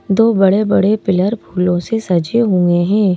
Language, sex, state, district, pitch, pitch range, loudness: Hindi, male, Madhya Pradesh, Bhopal, 195 Hz, 180-215 Hz, -14 LUFS